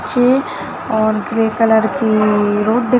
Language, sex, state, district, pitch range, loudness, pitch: Hindi, female, Chhattisgarh, Bilaspur, 215-245 Hz, -15 LUFS, 220 Hz